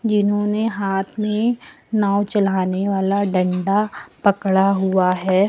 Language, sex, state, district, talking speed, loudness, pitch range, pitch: Hindi, female, Uttar Pradesh, Lucknow, 110 wpm, -19 LUFS, 190-210 Hz, 200 Hz